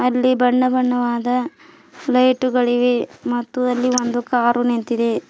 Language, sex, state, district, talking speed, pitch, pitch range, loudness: Kannada, female, Karnataka, Bidar, 100 wpm, 250 Hz, 240-250 Hz, -18 LUFS